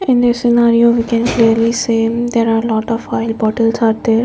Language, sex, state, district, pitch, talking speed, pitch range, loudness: English, female, Punjab, Fazilka, 230 Hz, 210 wpm, 225-235 Hz, -14 LUFS